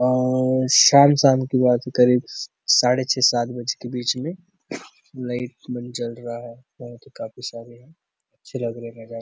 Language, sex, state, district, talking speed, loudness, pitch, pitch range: Hindi, male, Chhattisgarh, Bastar, 180 wpm, -20 LUFS, 125 Hz, 120-130 Hz